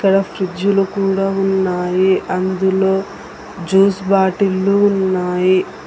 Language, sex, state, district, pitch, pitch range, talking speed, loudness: Telugu, female, Telangana, Hyderabad, 190 Hz, 185-195 Hz, 80 wpm, -16 LUFS